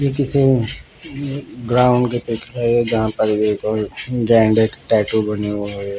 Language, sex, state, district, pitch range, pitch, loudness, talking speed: Hindi, male, Bihar, Patna, 105-125 Hz, 115 Hz, -18 LUFS, 150 wpm